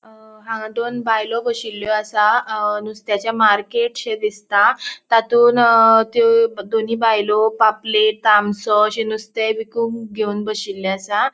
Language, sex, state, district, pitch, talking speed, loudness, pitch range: Konkani, female, Goa, North and South Goa, 220 Hz, 115 wpm, -17 LUFS, 210-230 Hz